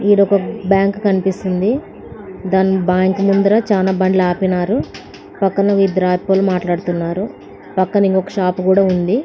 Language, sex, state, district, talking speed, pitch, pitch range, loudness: Telugu, female, Andhra Pradesh, Anantapur, 125 wpm, 190 Hz, 185-200 Hz, -16 LUFS